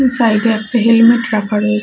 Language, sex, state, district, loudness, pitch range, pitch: Bengali, female, West Bengal, Jhargram, -12 LUFS, 215-230 Hz, 225 Hz